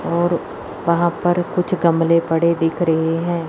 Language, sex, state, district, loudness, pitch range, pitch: Hindi, female, Chandigarh, Chandigarh, -18 LUFS, 165-175 Hz, 170 Hz